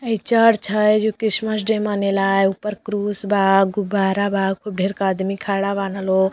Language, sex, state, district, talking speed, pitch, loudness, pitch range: Bhojpuri, female, Uttar Pradesh, Deoria, 200 wpm, 200 Hz, -19 LUFS, 195-210 Hz